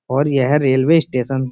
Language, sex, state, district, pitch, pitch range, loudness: Hindi, male, Uttar Pradesh, Budaun, 135 Hz, 130-145 Hz, -16 LUFS